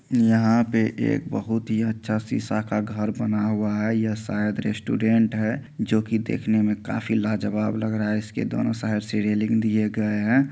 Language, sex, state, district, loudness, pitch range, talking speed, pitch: Angika, male, Bihar, Supaul, -24 LUFS, 105-110 Hz, 190 wpm, 110 Hz